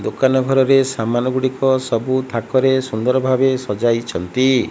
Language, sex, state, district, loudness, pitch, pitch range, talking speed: Odia, female, Odisha, Malkangiri, -17 LUFS, 130 Hz, 120-130 Hz, 115 wpm